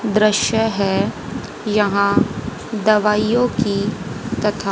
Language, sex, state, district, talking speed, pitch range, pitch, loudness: Hindi, female, Haryana, Charkhi Dadri, 75 wpm, 200-215 Hz, 210 Hz, -18 LUFS